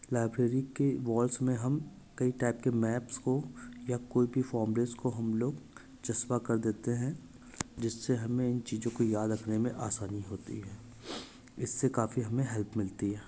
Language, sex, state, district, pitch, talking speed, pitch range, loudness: Hindi, male, Uttar Pradesh, Jyotiba Phule Nagar, 120 Hz, 165 wpm, 110-125 Hz, -33 LUFS